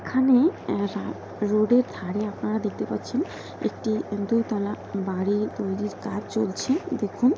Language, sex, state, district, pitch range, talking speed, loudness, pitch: Bengali, female, West Bengal, Kolkata, 205-245 Hz, 120 wpm, -26 LUFS, 210 Hz